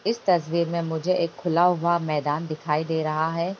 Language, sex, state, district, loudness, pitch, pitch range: Hindi, female, Bihar, Begusarai, -24 LUFS, 170 Hz, 155-175 Hz